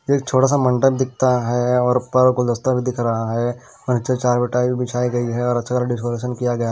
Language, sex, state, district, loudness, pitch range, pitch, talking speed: Hindi, male, Maharashtra, Washim, -19 LUFS, 120-130 Hz, 125 Hz, 230 wpm